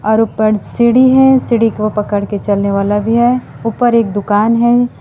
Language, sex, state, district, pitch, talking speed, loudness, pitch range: Hindi, female, Assam, Sonitpur, 225 Hz, 190 wpm, -12 LUFS, 205-240 Hz